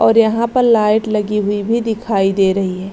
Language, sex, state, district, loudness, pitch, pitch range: Hindi, female, Bihar, Araria, -15 LUFS, 210 Hz, 195-225 Hz